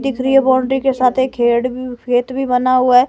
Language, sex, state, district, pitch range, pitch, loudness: Hindi, female, Himachal Pradesh, Shimla, 250-265 Hz, 255 Hz, -15 LUFS